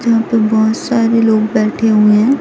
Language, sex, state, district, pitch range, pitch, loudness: Hindi, female, Chhattisgarh, Raipur, 215-230 Hz, 225 Hz, -12 LUFS